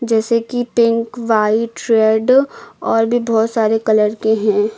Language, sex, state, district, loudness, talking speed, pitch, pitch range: Hindi, female, Uttar Pradesh, Lucknow, -15 LUFS, 150 wpm, 225 Hz, 220-235 Hz